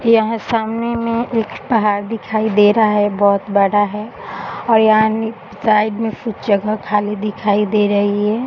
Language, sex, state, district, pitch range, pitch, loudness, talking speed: Hindi, female, Bihar, Saharsa, 205-225 Hz, 215 Hz, -16 LUFS, 165 wpm